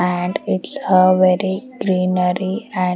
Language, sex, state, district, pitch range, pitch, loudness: English, female, Haryana, Rohtak, 180-190 Hz, 185 Hz, -18 LUFS